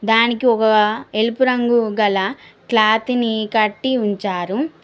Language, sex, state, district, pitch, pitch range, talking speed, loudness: Telugu, female, Telangana, Mahabubabad, 220 Hz, 210-240 Hz, 110 wpm, -17 LUFS